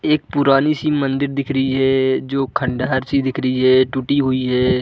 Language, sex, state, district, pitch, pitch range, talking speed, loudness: Hindi, male, Uttar Pradesh, Budaun, 135 Hz, 130-140 Hz, 200 wpm, -17 LUFS